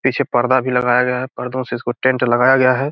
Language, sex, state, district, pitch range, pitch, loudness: Hindi, male, Bihar, Gopalganj, 125-130 Hz, 125 Hz, -16 LUFS